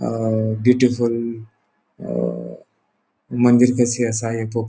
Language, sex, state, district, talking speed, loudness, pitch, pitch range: Konkani, male, Goa, North and South Goa, 90 wpm, -19 LUFS, 115 Hz, 110-120 Hz